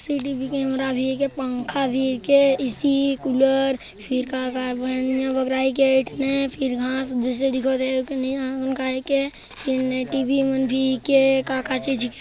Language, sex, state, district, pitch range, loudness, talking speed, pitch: Hindi, male, Chhattisgarh, Jashpur, 260-270 Hz, -21 LUFS, 160 wpm, 265 Hz